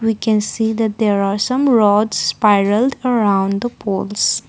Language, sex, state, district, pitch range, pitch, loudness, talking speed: English, female, Assam, Kamrup Metropolitan, 205-225 Hz, 215 Hz, -16 LUFS, 160 wpm